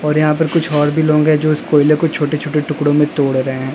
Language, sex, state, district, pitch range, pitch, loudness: Hindi, male, Uttar Pradesh, Lalitpur, 145-155 Hz, 150 Hz, -14 LUFS